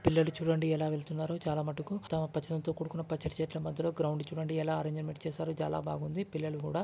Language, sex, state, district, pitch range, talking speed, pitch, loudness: Telugu, male, Karnataka, Gulbarga, 155-165 Hz, 175 wpm, 160 Hz, -35 LUFS